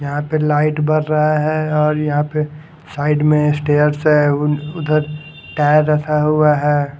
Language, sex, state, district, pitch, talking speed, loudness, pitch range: Hindi, male, Haryana, Charkhi Dadri, 150 Hz, 155 wpm, -16 LUFS, 150-155 Hz